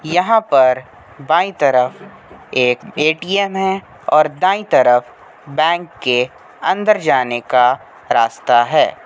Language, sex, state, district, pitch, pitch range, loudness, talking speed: Hindi, male, Uttar Pradesh, Hamirpur, 145 Hz, 125-185 Hz, -15 LUFS, 115 wpm